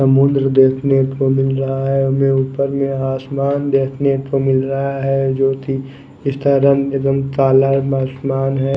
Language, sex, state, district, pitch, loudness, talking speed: Hindi, male, Odisha, Khordha, 135 Hz, -16 LUFS, 150 wpm